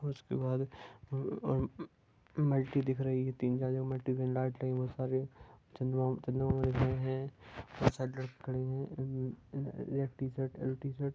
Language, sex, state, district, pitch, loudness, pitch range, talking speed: Hindi, male, Jharkhand, Sahebganj, 130 Hz, -36 LUFS, 130-135 Hz, 65 wpm